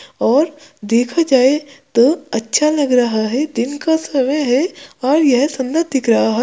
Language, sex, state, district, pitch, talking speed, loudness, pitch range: Hindi, female, Uttar Pradesh, Jyotiba Phule Nagar, 275 Hz, 170 wpm, -16 LUFS, 250-300 Hz